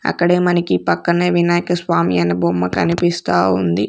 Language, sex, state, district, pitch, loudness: Telugu, female, Andhra Pradesh, Sri Satya Sai, 105 Hz, -16 LUFS